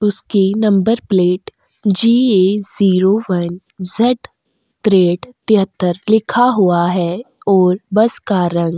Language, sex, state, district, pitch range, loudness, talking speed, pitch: Hindi, female, Goa, North and South Goa, 180-220 Hz, -15 LUFS, 125 wpm, 195 Hz